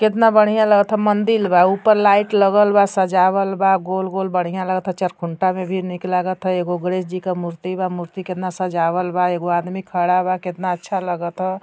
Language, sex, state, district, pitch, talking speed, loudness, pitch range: Bhojpuri, female, Uttar Pradesh, Ghazipur, 185 Hz, 195 wpm, -18 LUFS, 180-195 Hz